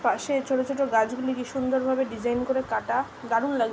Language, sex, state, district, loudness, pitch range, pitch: Bengali, female, West Bengal, Jhargram, -26 LUFS, 235-265 Hz, 260 Hz